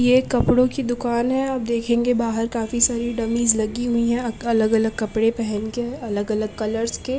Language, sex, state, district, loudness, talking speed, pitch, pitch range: Hindi, female, Maharashtra, Aurangabad, -21 LUFS, 215 wpm, 235 Hz, 225-245 Hz